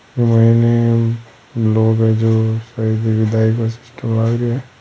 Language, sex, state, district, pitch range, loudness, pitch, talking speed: Hindi, male, Rajasthan, Churu, 110-115 Hz, -16 LUFS, 115 Hz, 100 wpm